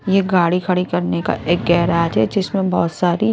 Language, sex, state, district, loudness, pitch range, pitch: Hindi, male, Odisha, Malkangiri, -17 LUFS, 170-190 Hz, 175 Hz